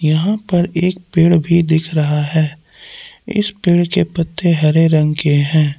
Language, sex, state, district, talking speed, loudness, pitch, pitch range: Hindi, male, Jharkhand, Palamu, 165 wpm, -15 LUFS, 165 Hz, 155-180 Hz